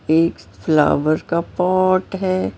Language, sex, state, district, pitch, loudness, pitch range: Hindi, female, Maharashtra, Mumbai Suburban, 170 Hz, -18 LUFS, 155-185 Hz